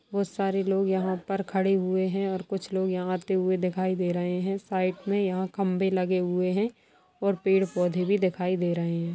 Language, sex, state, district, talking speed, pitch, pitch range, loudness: Hindi, female, Bihar, Jamui, 210 wpm, 185 Hz, 185-195 Hz, -27 LUFS